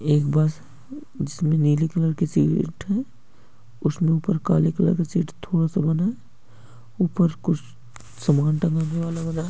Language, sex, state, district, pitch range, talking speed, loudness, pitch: Hindi, male, Jharkhand, Jamtara, 140-170 Hz, 165 wpm, -23 LUFS, 160 Hz